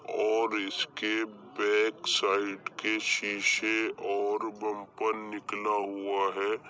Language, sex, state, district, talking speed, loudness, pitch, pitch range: Hindi, male, Uttar Pradesh, Jyotiba Phule Nagar, 100 wpm, -30 LUFS, 105 Hz, 100-110 Hz